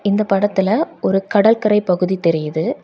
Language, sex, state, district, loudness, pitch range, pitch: Tamil, female, Tamil Nadu, Kanyakumari, -16 LUFS, 180-210 Hz, 200 Hz